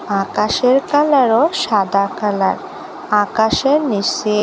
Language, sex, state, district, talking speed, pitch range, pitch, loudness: Bengali, female, Assam, Hailakandi, 95 wpm, 205-275 Hz, 220 Hz, -16 LUFS